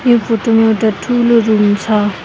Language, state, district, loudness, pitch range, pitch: Nepali, West Bengal, Darjeeling, -12 LUFS, 210-235 Hz, 225 Hz